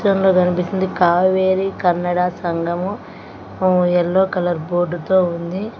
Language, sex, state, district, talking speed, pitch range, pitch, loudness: Telugu, female, Telangana, Hyderabad, 105 wpm, 175-190 Hz, 180 Hz, -18 LUFS